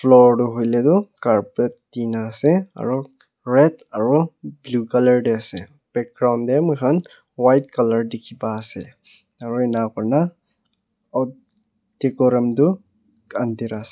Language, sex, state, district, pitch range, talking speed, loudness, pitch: Nagamese, male, Nagaland, Kohima, 115-155 Hz, 130 wpm, -20 LUFS, 125 Hz